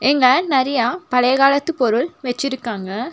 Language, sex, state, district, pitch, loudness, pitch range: Tamil, female, Tamil Nadu, Nilgiris, 260 Hz, -17 LUFS, 245-280 Hz